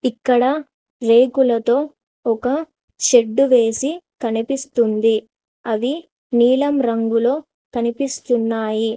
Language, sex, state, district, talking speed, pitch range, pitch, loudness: Telugu, female, Telangana, Mahabubabad, 65 wpm, 230-275 Hz, 245 Hz, -18 LUFS